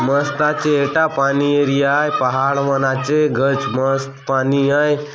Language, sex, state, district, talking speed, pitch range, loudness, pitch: Halbi, male, Chhattisgarh, Bastar, 150 wpm, 135-145 Hz, -17 LUFS, 140 Hz